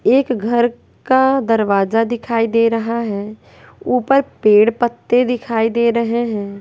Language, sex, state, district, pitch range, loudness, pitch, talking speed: Hindi, female, Bihar, West Champaran, 225-245 Hz, -16 LUFS, 230 Hz, 135 wpm